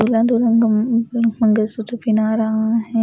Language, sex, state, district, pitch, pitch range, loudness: Hindi, female, Delhi, New Delhi, 225 Hz, 220-230 Hz, -17 LUFS